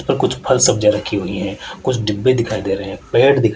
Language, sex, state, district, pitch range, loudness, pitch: Hindi, male, Rajasthan, Jaipur, 100-130 Hz, -17 LUFS, 105 Hz